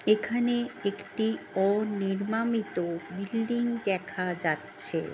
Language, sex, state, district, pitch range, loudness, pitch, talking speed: Bengali, female, West Bengal, North 24 Parganas, 195-225 Hz, -29 LUFS, 205 Hz, 80 wpm